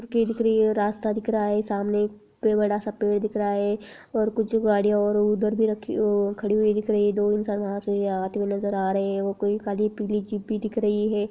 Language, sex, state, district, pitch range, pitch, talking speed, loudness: Hindi, female, Bihar, Madhepura, 205-215 Hz, 210 Hz, 255 wpm, -24 LUFS